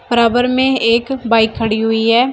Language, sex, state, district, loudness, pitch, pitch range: Hindi, female, Uttar Pradesh, Shamli, -14 LUFS, 235 Hz, 225-250 Hz